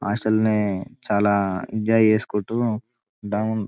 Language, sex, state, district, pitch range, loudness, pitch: Telugu, male, Telangana, Nalgonda, 100-110 Hz, -22 LUFS, 110 Hz